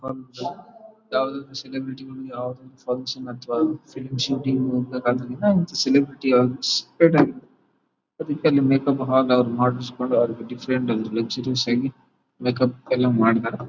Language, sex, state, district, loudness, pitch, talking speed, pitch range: Kannada, male, Karnataka, Bellary, -22 LUFS, 130 Hz, 105 wpm, 125-135 Hz